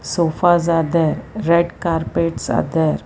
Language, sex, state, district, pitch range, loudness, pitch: English, female, Gujarat, Valsad, 160-170 Hz, -18 LUFS, 170 Hz